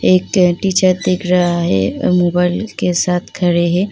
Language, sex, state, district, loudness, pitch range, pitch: Hindi, female, Uttar Pradesh, Muzaffarnagar, -15 LUFS, 175-185 Hz, 180 Hz